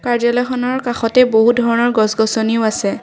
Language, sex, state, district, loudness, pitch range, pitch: Assamese, female, Assam, Kamrup Metropolitan, -15 LUFS, 220-245 Hz, 235 Hz